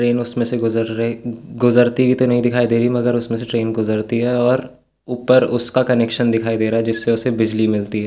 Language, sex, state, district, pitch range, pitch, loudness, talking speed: Hindi, male, Uttarakhand, Tehri Garhwal, 115-125 Hz, 120 Hz, -17 LUFS, 230 wpm